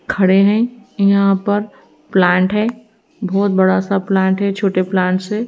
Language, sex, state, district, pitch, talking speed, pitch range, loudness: Hindi, female, Haryana, Rohtak, 200 Hz, 155 wpm, 190-210 Hz, -15 LUFS